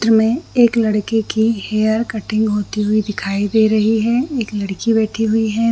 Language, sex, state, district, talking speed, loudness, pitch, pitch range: Hindi, female, Chhattisgarh, Bilaspur, 200 wpm, -17 LUFS, 220 Hz, 215-225 Hz